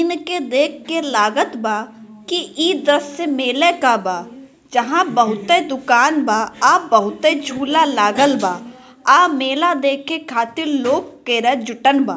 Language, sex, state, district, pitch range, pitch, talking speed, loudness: Bhojpuri, female, Bihar, Gopalganj, 235-320 Hz, 275 Hz, 145 wpm, -17 LUFS